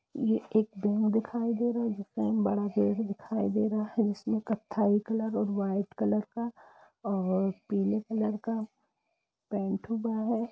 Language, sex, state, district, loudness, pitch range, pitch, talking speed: Hindi, female, Jharkhand, Jamtara, -30 LUFS, 200-225 Hz, 215 Hz, 160 wpm